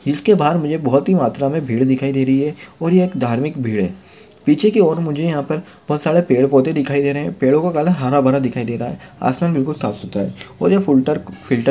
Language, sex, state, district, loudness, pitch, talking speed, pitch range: Hindi, male, Maharashtra, Sindhudurg, -17 LUFS, 145 Hz, 240 wpm, 130-160 Hz